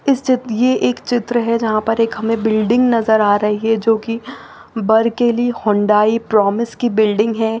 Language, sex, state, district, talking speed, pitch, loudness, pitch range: Hindi, female, Chandigarh, Chandigarh, 180 wpm, 225 Hz, -16 LUFS, 215-235 Hz